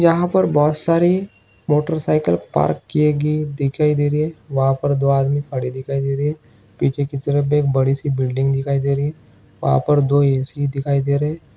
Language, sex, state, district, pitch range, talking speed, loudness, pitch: Hindi, male, Maharashtra, Solapur, 135-150 Hz, 215 wpm, -19 LUFS, 140 Hz